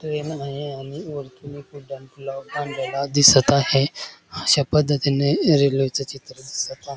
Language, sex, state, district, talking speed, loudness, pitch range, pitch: Marathi, male, Maharashtra, Dhule, 140 wpm, -20 LUFS, 135-145 Hz, 140 Hz